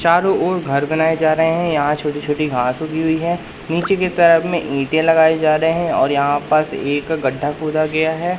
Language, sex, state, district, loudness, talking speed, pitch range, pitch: Hindi, male, Madhya Pradesh, Katni, -17 LUFS, 215 wpm, 150-170 Hz, 160 Hz